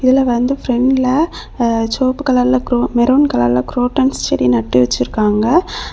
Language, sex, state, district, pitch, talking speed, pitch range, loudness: Tamil, female, Tamil Nadu, Kanyakumari, 245 Hz, 120 wpm, 210-265 Hz, -14 LUFS